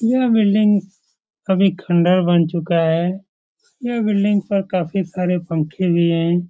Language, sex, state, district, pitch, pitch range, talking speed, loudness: Hindi, male, Bihar, Supaul, 185 Hz, 170-205 Hz, 155 wpm, -18 LUFS